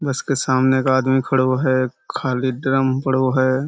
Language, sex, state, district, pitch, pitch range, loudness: Hindi, male, Uttar Pradesh, Budaun, 130 Hz, 130-135 Hz, -19 LUFS